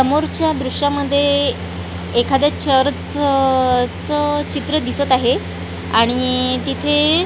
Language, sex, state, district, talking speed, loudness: Marathi, female, Maharashtra, Gondia, 75 wpm, -17 LUFS